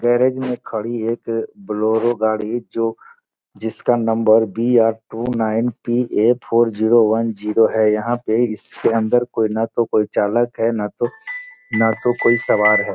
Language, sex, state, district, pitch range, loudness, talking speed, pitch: Hindi, male, Bihar, Gopalganj, 110-120 Hz, -18 LUFS, 155 wpm, 115 Hz